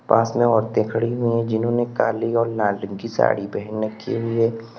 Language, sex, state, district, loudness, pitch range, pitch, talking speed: Hindi, male, Uttar Pradesh, Lalitpur, -21 LUFS, 110-115 Hz, 115 Hz, 215 wpm